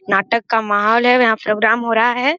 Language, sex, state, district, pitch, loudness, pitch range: Hindi, male, Bihar, Jamui, 225 Hz, -15 LUFS, 215-240 Hz